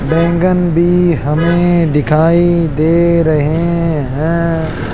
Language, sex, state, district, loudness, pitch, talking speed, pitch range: Hindi, male, Rajasthan, Jaipur, -12 LUFS, 165 Hz, 85 wpm, 155-170 Hz